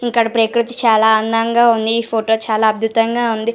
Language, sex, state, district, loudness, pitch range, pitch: Telugu, female, Telangana, Karimnagar, -15 LUFS, 220-230 Hz, 225 Hz